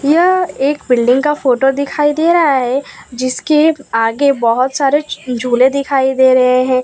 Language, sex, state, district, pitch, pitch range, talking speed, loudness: Hindi, female, Gujarat, Valsad, 270 Hz, 255-295 Hz, 160 wpm, -13 LUFS